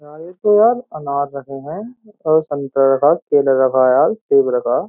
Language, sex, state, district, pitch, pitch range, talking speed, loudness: Hindi, male, Uttar Pradesh, Jyotiba Phule Nagar, 150 Hz, 140-210 Hz, 210 wpm, -15 LUFS